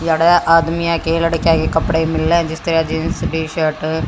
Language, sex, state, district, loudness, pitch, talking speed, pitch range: Hindi, female, Haryana, Jhajjar, -16 LUFS, 165 Hz, 160 wpm, 160-165 Hz